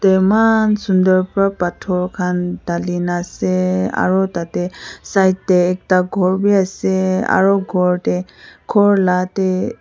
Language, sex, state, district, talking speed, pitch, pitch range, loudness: Nagamese, female, Nagaland, Kohima, 135 wpm, 185 Hz, 180-195 Hz, -16 LUFS